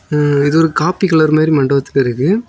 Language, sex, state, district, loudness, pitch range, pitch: Tamil, male, Tamil Nadu, Kanyakumari, -13 LUFS, 140-165 Hz, 155 Hz